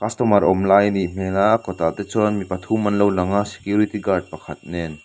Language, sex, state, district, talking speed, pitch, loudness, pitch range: Mizo, male, Mizoram, Aizawl, 225 wpm, 100 Hz, -20 LUFS, 90-105 Hz